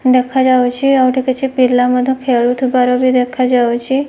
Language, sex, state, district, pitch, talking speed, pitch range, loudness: Odia, female, Odisha, Malkangiri, 255 Hz, 160 wpm, 250-260 Hz, -13 LUFS